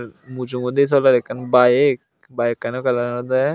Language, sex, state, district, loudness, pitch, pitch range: Chakma, male, Tripura, Unakoti, -18 LUFS, 125 Hz, 120-130 Hz